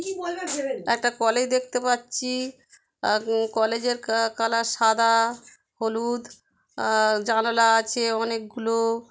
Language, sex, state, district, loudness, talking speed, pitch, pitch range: Bengali, female, West Bengal, Kolkata, -24 LUFS, 90 wpm, 230 Hz, 225-250 Hz